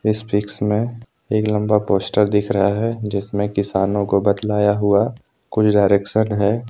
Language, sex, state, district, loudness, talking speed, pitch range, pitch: Hindi, male, Jharkhand, Deoghar, -19 LUFS, 150 wpm, 100-110 Hz, 105 Hz